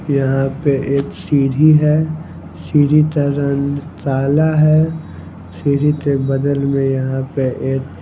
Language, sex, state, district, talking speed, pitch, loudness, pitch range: Hindi, male, Himachal Pradesh, Shimla, 125 wpm, 140 Hz, -16 LUFS, 135-150 Hz